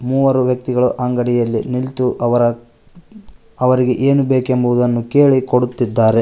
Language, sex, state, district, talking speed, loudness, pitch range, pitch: Kannada, male, Karnataka, Koppal, 95 wpm, -15 LUFS, 120-130 Hz, 125 Hz